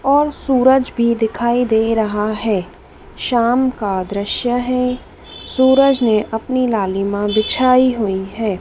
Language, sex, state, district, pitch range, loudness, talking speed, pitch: Hindi, female, Madhya Pradesh, Dhar, 210-255 Hz, -16 LUFS, 125 wpm, 235 Hz